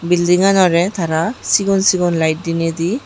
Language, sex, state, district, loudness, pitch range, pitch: Chakma, female, Tripura, Unakoti, -15 LUFS, 165-190 Hz, 175 Hz